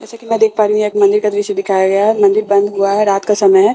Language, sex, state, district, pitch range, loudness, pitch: Hindi, female, Bihar, Katihar, 200-215 Hz, -13 LUFS, 210 Hz